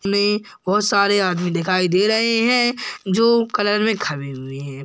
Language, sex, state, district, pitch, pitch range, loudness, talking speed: Hindi, female, Uttar Pradesh, Hamirpur, 205 Hz, 180-220 Hz, -18 LUFS, 160 wpm